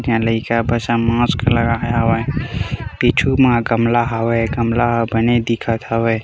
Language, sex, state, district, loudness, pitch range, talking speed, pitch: Chhattisgarhi, male, Chhattisgarh, Korba, -17 LUFS, 115-120 Hz, 155 wpm, 115 Hz